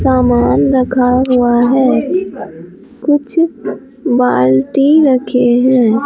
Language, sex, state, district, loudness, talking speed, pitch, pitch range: Hindi, female, Bihar, Katihar, -12 LUFS, 80 wpm, 255 Hz, 245-275 Hz